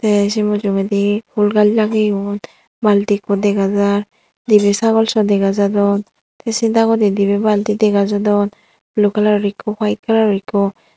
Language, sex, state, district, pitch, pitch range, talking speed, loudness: Chakma, female, Tripura, Unakoti, 205 Hz, 200-215 Hz, 165 wpm, -15 LUFS